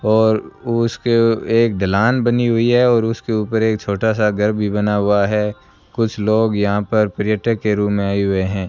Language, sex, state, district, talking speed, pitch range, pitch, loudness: Hindi, male, Rajasthan, Bikaner, 200 wpm, 105-115 Hz, 110 Hz, -17 LUFS